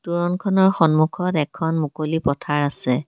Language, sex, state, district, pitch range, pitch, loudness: Assamese, female, Assam, Kamrup Metropolitan, 145-175 Hz, 160 Hz, -20 LUFS